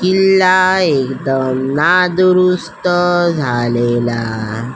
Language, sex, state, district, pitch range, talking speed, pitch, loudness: Marathi, female, Maharashtra, Solapur, 120-180 Hz, 50 wpm, 160 Hz, -14 LUFS